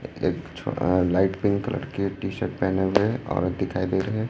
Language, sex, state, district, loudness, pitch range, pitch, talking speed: Hindi, male, Chhattisgarh, Raipur, -25 LUFS, 95-105 Hz, 95 Hz, 195 wpm